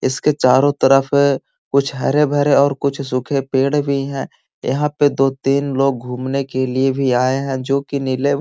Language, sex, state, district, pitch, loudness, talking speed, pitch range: Magahi, male, Bihar, Gaya, 135 Hz, -17 LUFS, 195 wpm, 130-140 Hz